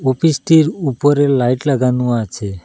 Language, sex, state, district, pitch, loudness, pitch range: Bengali, male, Assam, Hailakandi, 135 Hz, -15 LUFS, 125-145 Hz